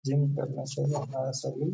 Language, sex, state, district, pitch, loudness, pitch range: Hindi, male, Bihar, Gaya, 145 Hz, -31 LUFS, 135-150 Hz